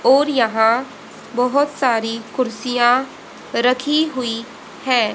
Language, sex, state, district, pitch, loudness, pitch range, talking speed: Hindi, female, Haryana, Rohtak, 250 Hz, -18 LUFS, 230-265 Hz, 95 wpm